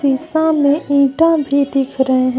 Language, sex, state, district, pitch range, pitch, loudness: Hindi, female, Jharkhand, Deoghar, 270-310 Hz, 280 Hz, -15 LUFS